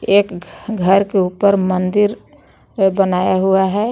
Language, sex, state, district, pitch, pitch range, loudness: Hindi, female, Jharkhand, Garhwa, 195 Hz, 185-205 Hz, -16 LUFS